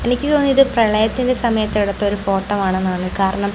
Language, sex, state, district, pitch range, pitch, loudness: Malayalam, female, Kerala, Kozhikode, 195-245 Hz, 210 Hz, -17 LUFS